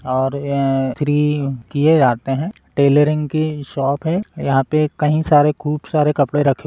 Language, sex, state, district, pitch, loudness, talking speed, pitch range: Hindi, male, Rajasthan, Churu, 145 Hz, -17 LUFS, 170 wpm, 140-150 Hz